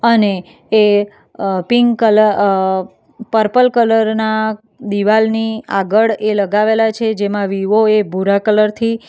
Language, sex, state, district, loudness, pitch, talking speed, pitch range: Gujarati, female, Gujarat, Valsad, -14 LUFS, 215 Hz, 130 wpm, 205-225 Hz